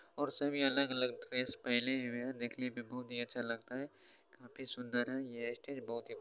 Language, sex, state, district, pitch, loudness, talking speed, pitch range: Hindi, male, Bihar, Supaul, 125 Hz, -38 LUFS, 215 wpm, 120-130 Hz